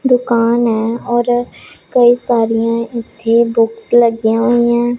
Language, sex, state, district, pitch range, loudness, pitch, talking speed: Punjabi, female, Punjab, Pathankot, 230-240 Hz, -14 LUFS, 235 Hz, 110 wpm